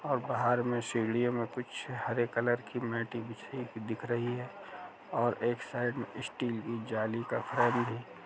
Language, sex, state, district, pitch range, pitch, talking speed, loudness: Hindi, male, Uttar Pradesh, Jalaun, 115-120 Hz, 120 Hz, 180 wpm, -34 LUFS